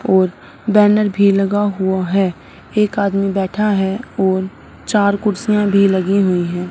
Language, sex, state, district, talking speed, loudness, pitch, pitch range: Hindi, female, Punjab, Fazilka, 150 wpm, -16 LUFS, 195 Hz, 190-205 Hz